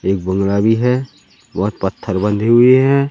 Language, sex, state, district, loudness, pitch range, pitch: Hindi, male, Madhya Pradesh, Katni, -15 LUFS, 95-125 Hz, 105 Hz